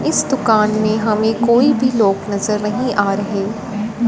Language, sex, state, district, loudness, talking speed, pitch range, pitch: Hindi, female, Punjab, Fazilka, -16 LUFS, 160 wpm, 210-235 Hz, 215 Hz